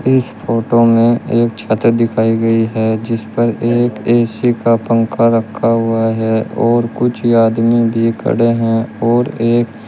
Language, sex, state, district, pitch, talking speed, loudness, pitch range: Hindi, male, Uttar Pradesh, Shamli, 115 Hz, 150 wpm, -14 LUFS, 115-120 Hz